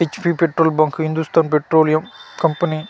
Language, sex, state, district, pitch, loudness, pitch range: Telugu, male, Andhra Pradesh, Manyam, 160 Hz, -17 LUFS, 155-165 Hz